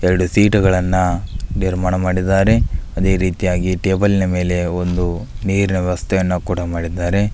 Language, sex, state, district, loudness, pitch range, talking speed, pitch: Kannada, male, Karnataka, Belgaum, -17 LUFS, 90-95 Hz, 105 wpm, 90 Hz